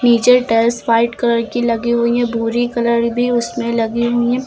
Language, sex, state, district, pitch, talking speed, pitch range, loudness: Hindi, female, Uttar Pradesh, Lucknow, 235 Hz, 200 wpm, 235-240 Hz, -16 LUFS